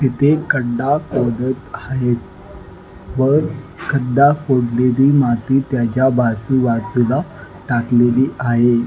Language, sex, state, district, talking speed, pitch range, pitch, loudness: Marathi, male, Maharashtra, Nagpur, 80 wpm, 120-135 Hz, 125 Hz, -16 LUFS